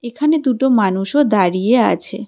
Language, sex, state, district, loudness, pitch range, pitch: Bengali, female, West Bengal, Cooch Behar, -15 LUFS, 200-265 Hz, 240 Hz